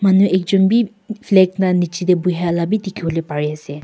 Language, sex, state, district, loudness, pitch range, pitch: Nagamese, female, Nagaland, Kohima, -17 LUFS, 170-195 Hz, 185 Hz